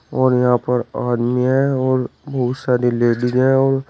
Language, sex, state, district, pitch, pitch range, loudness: Hindi, male, Uttar Pradesh, Shamli, 125 Hz, 125-130 Hz, -17 LUFS